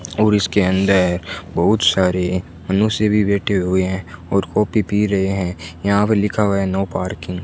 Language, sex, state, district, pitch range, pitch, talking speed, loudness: Hindi, male, Rajasthan, Bikaner, 90-105 Hz, 95 Hz, 185 wpm, -18 LUFS